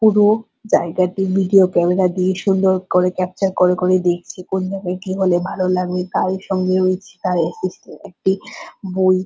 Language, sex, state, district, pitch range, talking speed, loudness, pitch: Bengali, female, West Bengal, Purulia, 180-190 Hz, 155 wpm, -18 LUFS, 185 Hz